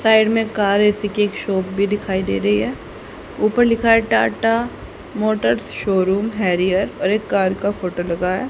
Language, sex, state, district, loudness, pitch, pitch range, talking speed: Hindi, female, Haryana, Charkhi Dadri, -18 LUFS, 205 Hz, 190-220 Hz, 170 wpm